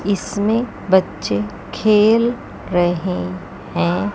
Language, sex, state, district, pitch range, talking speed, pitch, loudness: Hindi, female, Chandigarh, Chandigarh, 175-215 Hz, 70 wpm, 190 Hz, -18 LUFS